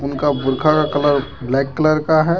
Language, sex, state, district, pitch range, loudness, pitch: Hindi, male, Jharkhand, Deoghar, 135-155 Hz, -17 LUFS, 145 Hz